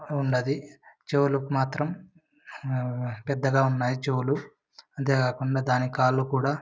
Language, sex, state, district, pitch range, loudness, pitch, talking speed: Telugu, male, Andhra Pradesh, Anantapur, 130-140 Hz, -27 LUFS, 135 Hz, 110 wpm